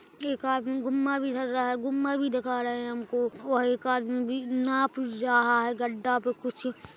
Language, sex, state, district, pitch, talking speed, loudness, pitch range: Hindi, female, Chhattisgarh, Kabirdham, 250 Hz, 205 wpm, -28 LUFS, 245-265 Hz